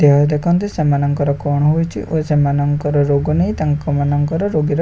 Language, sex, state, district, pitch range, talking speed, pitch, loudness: Odia, male, Odisha, Khordha, 145-155 Hz, 135 wpm, 150 Hz, -16 LUFS